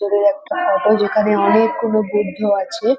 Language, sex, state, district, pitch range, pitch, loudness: Bengali, female, West Bengal, North 24 Parganas, 205-225 Hz, 210 Hz, -16 LUFS